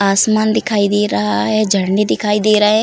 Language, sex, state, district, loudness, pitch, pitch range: Hindi, female, Uttar Pradesh, Varanasi, -14 LUFS, 210 Hz, 195-215 Hz